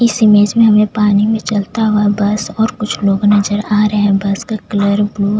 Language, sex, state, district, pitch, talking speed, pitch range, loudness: Hindi, female, Chhattisgarh, Jashpur, 210 Hz, 220 wpm, 205-215 Hz, -13 LUFS